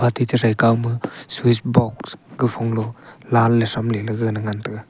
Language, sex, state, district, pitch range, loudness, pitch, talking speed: Wancho, male, Arunachal Pradesh, Longding, 110-120 Hz, -19 LUFS, 115 Hz, 145 wpm